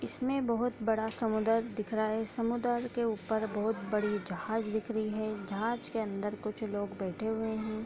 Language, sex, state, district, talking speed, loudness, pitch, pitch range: Hindi, female, Bihar, Bhagalpur, 185 wpm, -33 LUFS, 220 Hz, 215-230 Hz